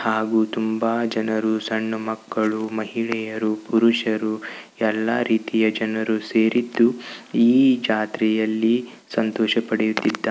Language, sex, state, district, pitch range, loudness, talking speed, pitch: Kannada, male, Karnataka, Bijapur, 110-115 Hz, -21 LUFS, 95 wpm, 110 Hz